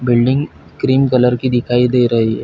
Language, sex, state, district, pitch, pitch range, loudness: Hindi, male, Chhattisgarh, Bilaspur, 125 Hz, 120-130 Hz, -14 LUFS